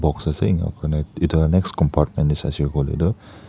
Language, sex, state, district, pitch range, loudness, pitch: Nagamese, male, Nagaland, Dimapur, 75-90 Hz, -21 LUFS, 80 Hz